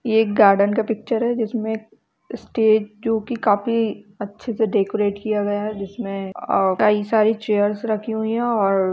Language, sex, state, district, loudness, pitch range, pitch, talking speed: Hindi, female, Uttar Pradesh, Jalaun, -20 LUFS, 205-225 Hz, 215 Hz, 190 wpm